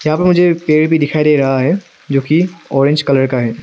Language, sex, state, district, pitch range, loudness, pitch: Hindi, male, Arunachal Pradesh, Lower Dibang Valley, 135-170 Hz, -13 LUFS, 150 Hz